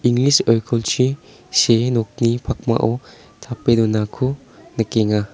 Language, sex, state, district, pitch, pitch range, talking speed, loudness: Garo, male, Meghalaya, South Garo Hills, 115 Hz, 110-130 Hz, 80 wpm, -18 LUFS